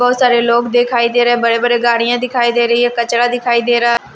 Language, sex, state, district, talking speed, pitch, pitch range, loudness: Hindi, female, Maharashtra, Washim, 260 wpm, 240 Hz, 235-245 Hz, -13 LUFS